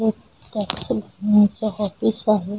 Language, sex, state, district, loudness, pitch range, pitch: Marathi, female, Maharashtra, Solapur, -21 LUFS, 205-220 Hz, 210 Hz